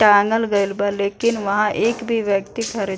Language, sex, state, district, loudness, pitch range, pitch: Bhojpuri, female, Bihar, East Champaran, -19 LUFS, 200-230 Hz, 210 Hz